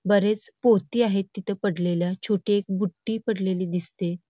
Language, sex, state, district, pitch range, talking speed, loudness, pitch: Marathi, female, Karnataka, Belgaum, 180-215 Hz, 140 wpm, -25 LUFS, 200 Hz